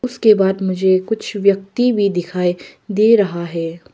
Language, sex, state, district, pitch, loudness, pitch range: Hindi, female, Arunachal Pradesh, Papum Pare, 195 Hz, -16 LUFS, 180-215 Hz